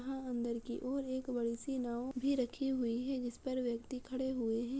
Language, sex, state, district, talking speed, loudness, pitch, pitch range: Hindi, female, Uttar Pradesh, Muzaffarnagar, 225 wpm, -38 LUFS, 255 Hz, 240-265 Hz